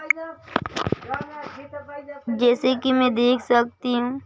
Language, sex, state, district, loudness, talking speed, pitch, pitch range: Hindi, male, Madhya Pradesh, Bhopal, -22 LUFS, 85 wpm, 255 Hz, 245-290 Hz